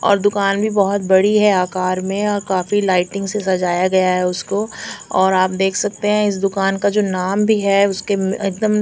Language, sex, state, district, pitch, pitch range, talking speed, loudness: Hindi, female, Chandigarh, Chandigarh, 195 Hz, 185-205 Hz, 220 wpm, -17 LUFS